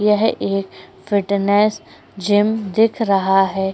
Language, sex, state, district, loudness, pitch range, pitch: Hindi, female, Uttar Pradesh, Etah, -17 LUFS, 195-215 Hz, 205 Hz